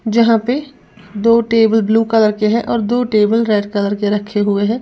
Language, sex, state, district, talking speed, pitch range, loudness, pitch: Hindi, female, Uttar Pradesh, Lalitpur, 210 wpm, 210-230 Hz, -15 LUFS, 220 Hz